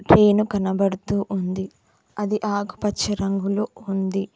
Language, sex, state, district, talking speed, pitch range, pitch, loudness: Telugu, female, Telangana, Mahabubabad, 95 wpm, 190-205 Hz, 200 Hz, -22 LUFS